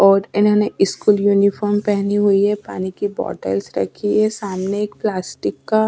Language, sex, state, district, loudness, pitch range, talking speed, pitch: Hindi, female, Bihar, West Champaran, -18 LUFS, 195-210 Hz, 165 wpm, 205 Hz